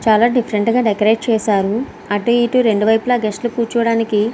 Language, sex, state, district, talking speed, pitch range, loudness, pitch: Telugu, female, Andhra Pradesh, Srikakulam, 150 wpm, 215-235 Hz, -16 LUFS, 225 Hz